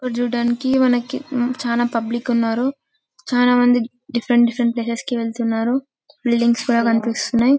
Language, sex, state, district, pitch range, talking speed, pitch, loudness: Telugu, female, Telangana, Karimnagar, 235-255 Hz, 125 wpm, 240 Hz, -19 LUFS